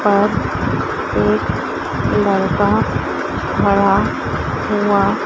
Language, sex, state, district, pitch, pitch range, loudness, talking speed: Hindi, female, Madhya Pradesh, Dhar, 200 Hz, 125-205 Hz, -17 LUFS, 55 wpm